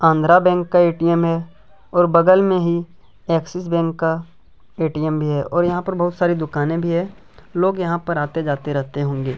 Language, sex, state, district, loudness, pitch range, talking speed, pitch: Hindi, male, Chhattisgarh, Kabirdham, -19 LUFS, 155-175 Hz, 200 wpm, 170 Hz